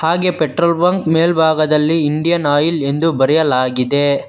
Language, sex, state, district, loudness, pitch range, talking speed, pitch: Kannada, male, Karnataka, Bangalore, -14 LUFS, 145-165 Hz, 110 wpm, 160 Hz